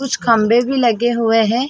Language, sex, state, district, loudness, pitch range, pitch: Hindi, female, Chhattisgarh, Sarguja, -15 LUFS, 225-245 Hz, 235 Hz